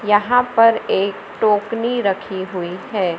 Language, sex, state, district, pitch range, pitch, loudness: Hindi, female, Madhya Pradesh, Umaria, 190-230 Hz, 205 Hz, -18 LUFS